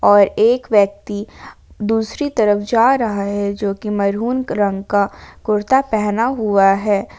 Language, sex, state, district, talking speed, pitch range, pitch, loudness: Hindi, female, Jharkhand, Palamu, 140 wpm, 200-225 Hz, 210 Hz, -17 LUFS